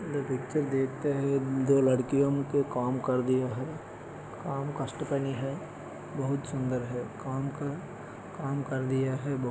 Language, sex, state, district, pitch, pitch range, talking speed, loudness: Hindi, male, Maharashtra, Solapur, 135 Hz, 130-140 Hz, 160 wpm, -31 LUFS